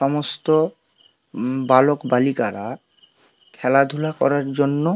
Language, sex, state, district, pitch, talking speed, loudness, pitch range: Bengali, male, West Bengal, Paschim Medinipur, 140 Hz, 95 wpm, -20 LUFS, 135-155 Hz